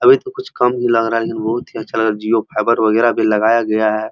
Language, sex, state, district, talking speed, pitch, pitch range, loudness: Hindi, male, Uttar Pradesh, Muzaffarnagar, 305 wpm, 115 Hz, 110-120 Hz, -16 LUFS